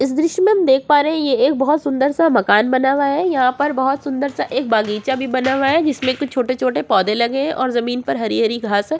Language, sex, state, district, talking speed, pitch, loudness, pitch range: Hindi, female, Uttar Pradesh, Jyotiba Phule Nagar, 265 wpm, 265 Hz, -17 LUFS, 255-290 Hz